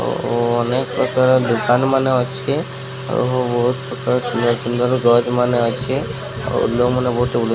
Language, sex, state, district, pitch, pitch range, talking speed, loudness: Odia, male, Odisha, Sambalpur, 125 Hz, 120-130 Hz, 160 wpm, -18 LUFS